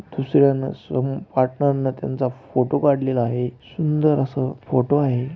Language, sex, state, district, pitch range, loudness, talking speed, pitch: Marathi, male, Maharashtra, Aurangabad, 130-140 Hz, -21 LUFS, 110 wpm, 135 Hz